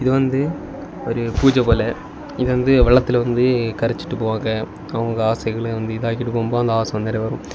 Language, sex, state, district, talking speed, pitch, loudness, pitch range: Tamil, male, Tamil Nadu, Kanyakumari, 160 wpm, 115 Hz, -19 LUFS, 115-125 Hz